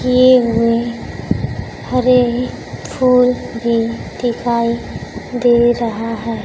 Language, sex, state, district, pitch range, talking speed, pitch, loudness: Hindi, female, Bihar, Kaimur, 230-250 Hz, 75 wpm, 240 Hz, -16 LUFS